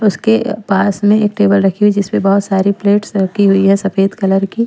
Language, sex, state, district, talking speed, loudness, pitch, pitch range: Hindi, female, Bihar, Patna, 230 wpm, -13 LUFS, 200 Hz, 195-210 Hz